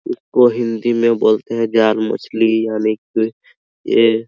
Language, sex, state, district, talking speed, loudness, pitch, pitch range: Hindi, male, Bihar, Araria, 155 wpm, -16 LUFS, 115 Hz, 110-115 Hz